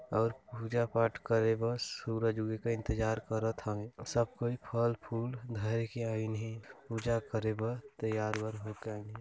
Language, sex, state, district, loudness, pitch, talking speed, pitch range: Hindi, male, Chhattisgarh, Balrampur, -35 LUFS, 115 Hz, 175 wpm, 110-115 Hz